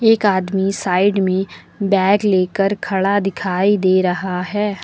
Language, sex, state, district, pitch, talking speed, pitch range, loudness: Hindi, female, Uttar Pradesh, Lucknow, 195 Hz, 135 wpm, 185-200 Hz, -17 LUFS